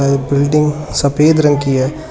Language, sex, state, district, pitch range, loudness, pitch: Hindi, male, Uttar Pradesh, Shamli, 140-150 Hz, -13 LUFS, 145 Hz